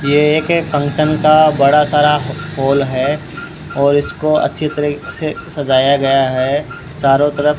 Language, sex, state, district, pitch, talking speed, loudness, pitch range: Hindi, male, Rajasthan, Bikaner, 150 Hz, 150 wpm, -14 LUFS, 140-155 Hz